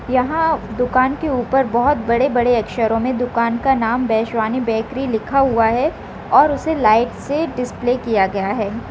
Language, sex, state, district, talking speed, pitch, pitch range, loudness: Hindi, female, Rajasthan, Nagaur, 170 wpm, 245 Hz, 225-270 Hz, -17 LUFS